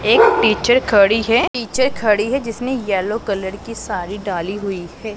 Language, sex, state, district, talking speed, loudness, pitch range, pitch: Hindi, female, Punjab, Pathankot, 185 wpm, -17 LUFS, 200-245 Hz, 220 Hz